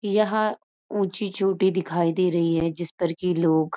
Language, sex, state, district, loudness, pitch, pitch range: Hindi, female, Uttarakhand, Uttarkashi, -24 LUFS, 180 Hz, 170-200 Hz